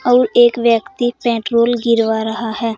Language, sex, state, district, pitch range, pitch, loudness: Hindi, female, Uttar Pradesh, Saharanpur, 225-240 Hz, 235 Hz, -15 LUFS